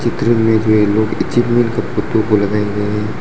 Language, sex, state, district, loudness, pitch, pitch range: Hindi, male, Arunachal Pradesh, Lower Dibang Valley, -15 LUFS, 110 Hz, 105-115 Hz